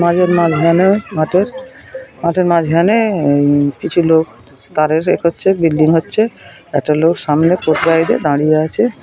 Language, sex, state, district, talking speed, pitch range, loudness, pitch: Bengali, male, West Bengal, North 24 Parganas, 120 wpm, 155-185 Hz, -13 LUFS, 165 Hz